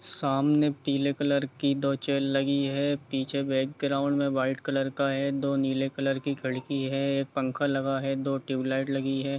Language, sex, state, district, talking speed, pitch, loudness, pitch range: Hindi, male, Jharkhand, Jamtara, 200 wpm, 140 Hz, -28 LUFS, 135-140 Hz